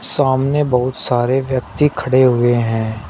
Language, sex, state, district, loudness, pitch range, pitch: Hindi, male, Uttar Pradesh, Shamli, -16 LUFS, 120-135 Hz, 130 Hz